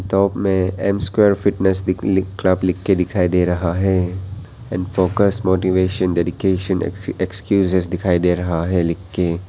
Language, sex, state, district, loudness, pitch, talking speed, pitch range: Hindi, male, Arunachal Pradesh, Papum Pare, -18 LUFS, 95 Hz, 165 wpm, 90-95 Hz